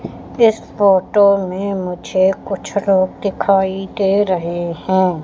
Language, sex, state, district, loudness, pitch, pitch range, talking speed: Hindi, female, Madhya Pradesh, Katni, -16 LUFS, 190 Hz, 185-200 Hz, 115 wpm